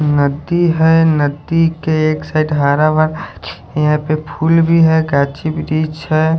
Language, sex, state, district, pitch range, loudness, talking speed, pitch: Hindi, male, Haryana, Charkhi Dadri, 145-160 Hz, -14 LUFS, 150 wpm, 155 Hz